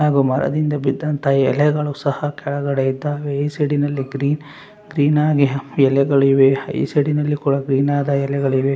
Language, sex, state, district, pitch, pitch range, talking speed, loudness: Kannada, male, Karnataka, Raichur, 140 Hz, 135-145 Hz, 145 wpm, -18 LUFS